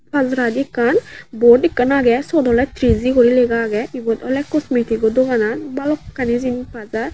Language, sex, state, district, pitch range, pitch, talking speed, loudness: Chakma, female, Tripura, West Tripura, 235-275 Hz, 250 Hz, 160 wpm, -17 LUFS